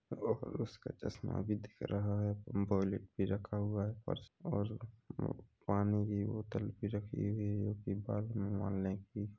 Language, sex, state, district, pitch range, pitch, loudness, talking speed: Hindi, male, Chhattisgarh, Rajnandgaon, 100-105 Hz, 105 Hz, -39 LUFS, 155 wpm